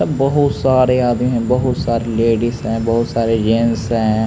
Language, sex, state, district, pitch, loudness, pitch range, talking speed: Hindi, male, Bihar, Patna, 115 Hz, -16 LUFS, 115-125 Hz, 185 wpm